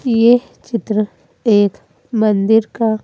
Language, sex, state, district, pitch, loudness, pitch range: Hindi, female, Madhya Pradesh, Bhopal, 220 Hz, -16 LUFS, 215-230 Hz